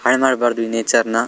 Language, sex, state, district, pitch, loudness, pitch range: Kannada, male, Karnataka, Shimoga, 115 Hz, -17 LUFS, 115-120 Hz